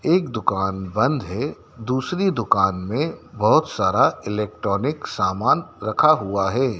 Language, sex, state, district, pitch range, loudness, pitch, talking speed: Hindi, male, Madhya Pradesh, Dhar, 100-145 Hz, -21 LUFS, 110 Hz, 125 wpm